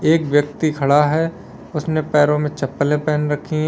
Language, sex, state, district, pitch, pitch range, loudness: Hindi, male, Uttar Pradesh, Lalitpur, 150 Hz, 145-155 Hz, -18 LUFS